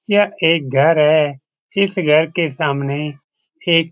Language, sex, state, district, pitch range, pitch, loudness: Hindi, male, Bihar, Jamui, 145-180 Hz, 160 Hz, -16 LUFS